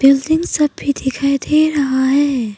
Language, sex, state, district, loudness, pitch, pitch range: Hindi, female, Arunachal Pradesh, Papum Pare, -15 LUFS, 280 Hz, 265-300 Hz